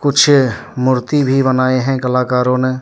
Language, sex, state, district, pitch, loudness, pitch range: Hindi, male, Jharkhand, Deoghar, 130 Hz, -14 LUFS, 125-135 Hz